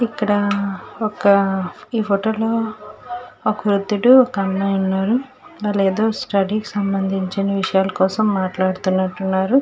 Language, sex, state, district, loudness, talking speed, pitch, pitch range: Telugu, female, Andhra Pradesh, Srikakulam, -19 LUFS, 120 wpm, 200 Hz, 190-215 Hz